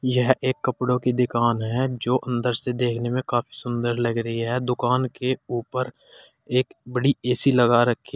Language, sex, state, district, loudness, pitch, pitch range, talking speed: Hindi, male, Uttar Pradesh, Saharanpur, -23 LUFS, 125 Hz, 120-130 Hz, 185 wpm